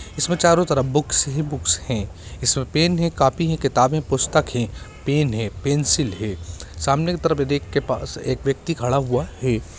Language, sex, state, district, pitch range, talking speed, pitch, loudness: Hindi, male, Andhra Pradesh, Chittoor, 115-155 Hz, 185 wpm, 135 Hz, -21 LUFS